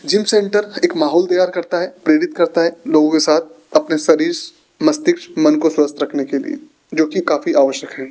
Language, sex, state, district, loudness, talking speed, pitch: Hindi, male, Rajasthan, Jaipur, -16 LUFS, 200 wpm, 175 Hz